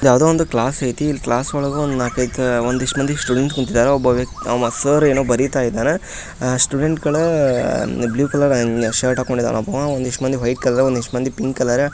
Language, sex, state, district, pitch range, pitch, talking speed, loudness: Kannada, male, Karnataka, Dharwad, 125-140 Hz, 130 Hz, 165 wpm, -18 LUFS